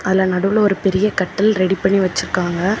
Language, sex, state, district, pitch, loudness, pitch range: Tamil, female, Tamil Nadu, Kanyakumari, 190 Hz, -17 LUFS, 185-200 Hz